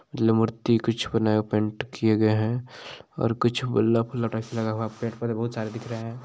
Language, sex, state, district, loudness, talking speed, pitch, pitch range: Hindi, male, Chhattisgarh, Balrampur, -25 LUFS, 220 wpm, 115 Hz, 110-115 Hz